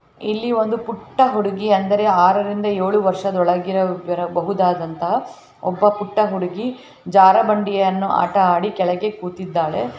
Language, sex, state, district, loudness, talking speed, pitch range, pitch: Kannada, female, Karnataka, Bellary, -18 LUFS, 120 wpm, 180-210 Hz, 195 Hz